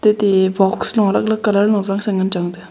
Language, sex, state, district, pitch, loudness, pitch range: Wancho, female, Arunachal Pradesh, Longding, 200 Hz, -16 LUFS, 190-210 Hz